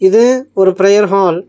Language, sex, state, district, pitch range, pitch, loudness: Tamil, male, Tamil Nadu, Nilgiris, 190-220 Hz, 195 Hz, -11 LUFS